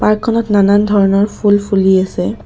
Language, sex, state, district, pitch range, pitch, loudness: Assamese, female, Assam, Kamrup Metropolitan, 195-210 Hz, 205 Hz, -12 LUFS